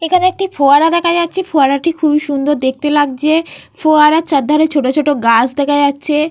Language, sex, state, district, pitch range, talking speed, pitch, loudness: Bengali, female, Jharkhand, Jamtara, 285-325 Hz, 170 wpm, 300 Hz, -12 LUFS